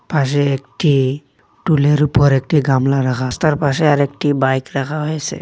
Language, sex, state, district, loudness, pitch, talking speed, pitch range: Bengali, male, Assam, Hailakandi, -16 LUFS, 145 Hz, 145 wpm, 135-150 Hz